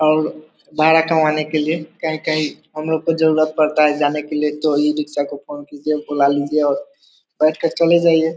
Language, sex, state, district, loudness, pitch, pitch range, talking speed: Hindi, male, Bihar, East Champaran, -18 LUFS, 155 Hz, 150-160 Hz, 200 wpm